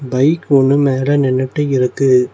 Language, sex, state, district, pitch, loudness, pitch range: Tamil, male, Tamil Nadu, Nilgiris, 135 Hz, -14 LUFS, 130-145 Hz